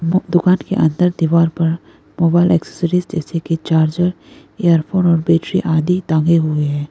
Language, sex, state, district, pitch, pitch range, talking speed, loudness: Hindi, female, Arunachal Pradesh, Lower Dibang Valley, 170 Hz, 160-180 Hz, 155 wpm, -16 LUFS